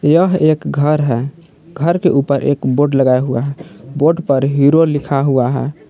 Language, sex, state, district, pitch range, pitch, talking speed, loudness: Hindi, male, Jharkhand, Palamu, 135-155 Hz, 145 Hz, 185 wpm, -14 LUFS